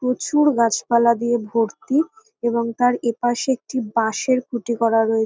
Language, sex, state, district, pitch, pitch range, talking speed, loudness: Bengali, female, West Bengal, North 24 Parganas, 235 Hz, 230-255 Hz, 150 wpm, -20 LUFS